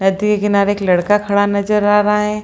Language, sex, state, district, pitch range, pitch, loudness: Hindi, female, Bihar, Lakhisarai, 200-210 Hz, 205 Hz, -14 LUFS